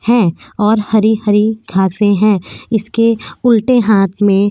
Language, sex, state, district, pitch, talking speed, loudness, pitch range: Hindi, female, Goa, North and South Goa, 215 Hz, 135 wpm, -13 LUFS, 205-225 Hz